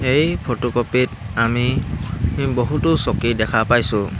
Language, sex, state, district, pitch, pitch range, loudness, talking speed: Assamese, male, Assam, Hailakandi, 120 Hz, 115-130 Hz, -19 LUFS, 115 wpm